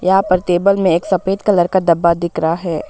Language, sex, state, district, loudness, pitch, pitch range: Hindi, female, Arunachal Pradesh, Papum Pare, -15 LUFS, 180 Hz, 170-190 Hz